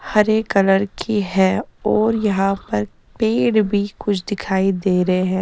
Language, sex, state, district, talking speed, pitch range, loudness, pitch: Hindi, female, Chandigarh, Chandigarh, 155 wpm, 190-215 Hz, -19 LUFS, 195 Hz